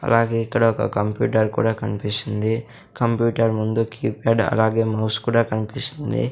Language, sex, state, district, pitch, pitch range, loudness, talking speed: Telugu, male, Andhra Pradesh, Sri Satya Sai, 115 Hz, 110-115 Hz, -21 LUFS, 125 wpm